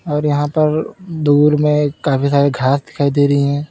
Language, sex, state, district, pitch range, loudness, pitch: Hindi, male, Uttar Pradesh, Lalitpur, 140-150 Hz, -15 LUFS, 145 Hz